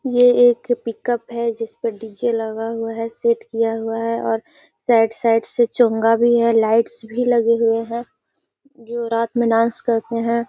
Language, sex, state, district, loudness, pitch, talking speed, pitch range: Hindi, female, Bihar, Gaya, -19 LUFS, 230 Hz, 170 wpm, 225-235 Hz